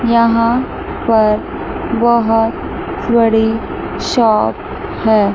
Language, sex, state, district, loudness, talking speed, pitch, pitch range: Hindi, male, Chandigarh, Chandigarh, -15 LUFS, 65 wpm, 225 Hz, 220-235 Hz